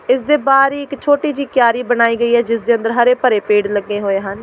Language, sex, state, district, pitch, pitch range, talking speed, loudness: Punjabi, female, Delhi, New Delhi, 240 Hz, 220-275 Hz, 270 wpm, -14 LUFS